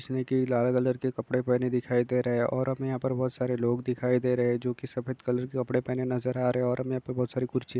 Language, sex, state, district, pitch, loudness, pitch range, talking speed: Hindi, male, Chhattisgarh, Balrampur, 125 Hz, -29 LUFS, 125-130 Hz, 305 wpm